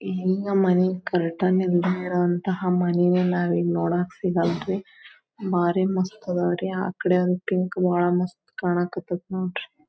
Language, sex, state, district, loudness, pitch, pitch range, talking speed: Kannada, female, Karnataka, Belgaum, -24 LUFS, 180 Hz, 175-185 Hz, 95 wpm